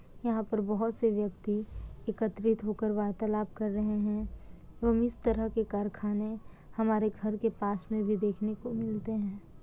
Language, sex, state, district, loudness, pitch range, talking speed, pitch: Hindi, female, Bihar, Kishanganj, -32 LUFS, 210-225 Hz, 160 wpm, 215 Hz